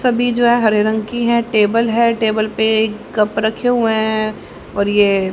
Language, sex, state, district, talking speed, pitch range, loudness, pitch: Hindi, female, Haryana, Jhajjar, 200 wpm, 215-235 Hz, -16 LUFS, 220 Hz